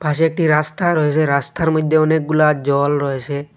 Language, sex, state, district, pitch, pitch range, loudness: Bengali, male, Assam, Hailakandi, 150 Hz, 145-160 Hz, -17 LUFS